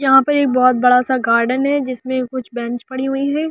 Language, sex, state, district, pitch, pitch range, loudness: Hindi, female, Delhi, New Delhi, 260 Hz, 250-270 Hz, -16 LUFS